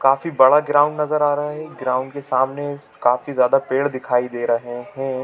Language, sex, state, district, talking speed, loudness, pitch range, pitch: Hindi, male, Chhattisgarh, Bilaspur, 195 wpm, -19 LUFS, 125-145 Hz, 135 Hz